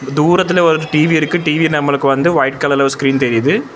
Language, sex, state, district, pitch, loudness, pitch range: Tamil, male, Tamil Nadu, Chennai, 150 Hz, -13 LUFS, 135-160 Hz